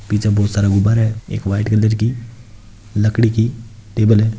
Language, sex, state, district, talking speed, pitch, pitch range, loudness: Hindi, male, Rajasthan, Nagaur, 165 wpm, 110 Hz, 105-110 Hz, -16 LUFS